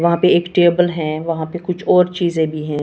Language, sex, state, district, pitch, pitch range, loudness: Hindi, female, Maharashtra, Washim, 170 Hz, 160-175 Hz, -16 LUFS